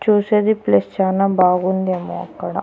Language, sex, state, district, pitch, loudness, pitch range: Telugu, female, Andhra Pradesh, Annamaya, 190 Hz, -17 LUFS, 180-205 Hz